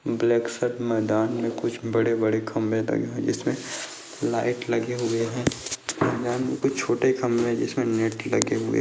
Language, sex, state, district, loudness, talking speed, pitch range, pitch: Hindi, male, Maharashtra, Dhule, -25 LUFS, 165 wpm, 115-125 Hz, 115 Hz